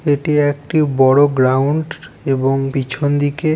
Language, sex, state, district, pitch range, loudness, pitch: Bengali, male, West Bengal, Purulia, 135-150 Hz, -16 LUFS, 145 Hz